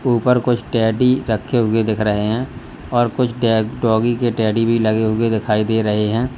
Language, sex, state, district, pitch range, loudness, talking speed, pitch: Hindi, male, Uttar Pradesh, Lalitpur, 110-120 Hz, -17 LUFS, 190 wpm, 115 Hz